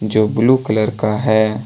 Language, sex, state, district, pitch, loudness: Hindi, male, Jharkhand, Deoghar, 110 Hz, -16 LUFS